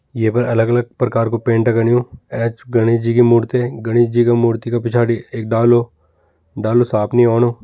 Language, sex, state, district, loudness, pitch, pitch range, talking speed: Kumaoni, male, Uttarakhand, Tehri Garhwal, -16 LUFS, 115 Hz, 115-120 Hz, 190 wpm